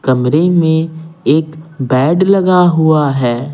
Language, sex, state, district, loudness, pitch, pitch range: Hindi, male, Bihar, Patna, -12 LUFS, 160 Hz, 135-165 Hz